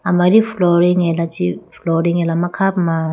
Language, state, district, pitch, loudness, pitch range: Idu Mishmi, Arunachal Pradesh, Lower Dibang Valley, 175 Hz, -16 LUFS, 165-180 Hz